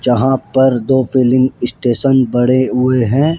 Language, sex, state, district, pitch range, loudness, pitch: Hindi, male, Rajasthan, Jaipur, 125-130 Hz, -13 LUFS, 130 Hz